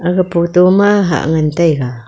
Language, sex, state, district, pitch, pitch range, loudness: Wancho, female, Arunachal Pradesh, Longding, 170 Hz, 155-180 Hz, -12 LUFS